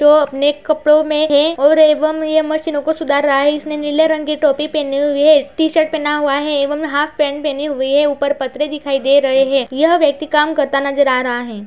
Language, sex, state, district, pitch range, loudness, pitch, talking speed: Hindi, female, Uttar Pradesh, Budaun, 280-305 Hz, -15 LUFS, 295 Hz, 225 wpm